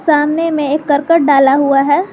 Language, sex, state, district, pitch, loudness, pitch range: Hindi, female, Jharkhand, Garhwa, 295 Hz, -12 LUFS, 280-325 Hz